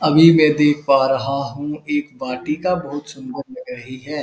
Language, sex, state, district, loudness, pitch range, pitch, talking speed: Hindi, male, Uttar Pradesh, Muzaffarnagar, -17 LUFS, 140-180 Hz, 150 Hz, 185 wpm